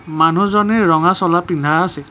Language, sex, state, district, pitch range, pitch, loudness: Assamese, male, Assam, Kamrup Metropolitan, 160-185 Hz, 170 Hz, -14 LUFS